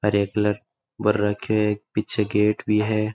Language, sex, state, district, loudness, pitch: Rajasthani, male, Rajasthan, Churu, -23 LUFS, 105 Hz